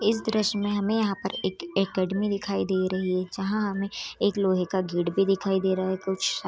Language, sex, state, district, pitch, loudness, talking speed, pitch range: Hindi, female, Chhattisgarh, Raigarh, 195 Hz, -26 LUFS, 230 wpm, 185-205 Hz